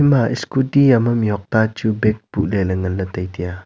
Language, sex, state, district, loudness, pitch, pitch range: Wancho, male, Arunachal Pradesh, Longding, -18 LUFS, 110 Hz, 95-120 Hz